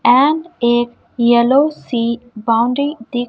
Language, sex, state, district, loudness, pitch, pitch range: Hindi, male, Chhattisgarh, Raipur, -16 LUFS, 240 Hz, 235-275 Hz